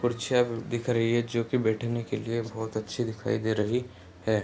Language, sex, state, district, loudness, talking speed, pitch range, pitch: Hindi, male, Bihar, Bhagalpur, -29 LUFS, 215 wpm, 110-120 Hz, 115 Hz